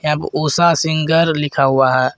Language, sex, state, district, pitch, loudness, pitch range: Hindi, male, Jharkhand, Garhwa, 150 Hz, -15 LUFS, 135-160 Hz